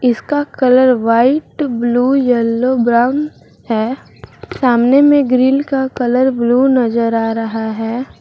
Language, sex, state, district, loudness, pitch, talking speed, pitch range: Hindi, female, Jharkhand, Garhwa, -14 LUFS, 250 Hz, 125 wpm, 235-265 Hz